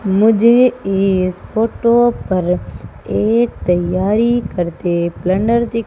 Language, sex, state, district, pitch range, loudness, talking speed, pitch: Hindi, female, Madhya Pradesh, Umaria, 180-235 Hz, -15 LUFS, 80 wpm, 205 Hz